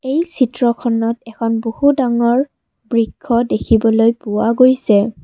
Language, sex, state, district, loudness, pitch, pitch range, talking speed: Assamese, female, Assam, Kamrup Metropolitan, -15 LUFS, 235 Hz, 225-255 Hz, 105 wpm